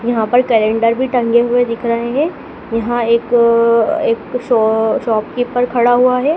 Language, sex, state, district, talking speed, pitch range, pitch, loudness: Hindi, female, Madhya Pradesh, Dhar, 180 wpm, 230-245 Hz, 235 Hz, -14 LUFS